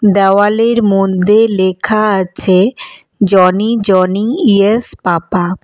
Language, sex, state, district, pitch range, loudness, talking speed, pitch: Bengali, female, West Bengal, Alipurduar, 185-215 Hz, -11 LUFS, 95 wpm, 200 Hz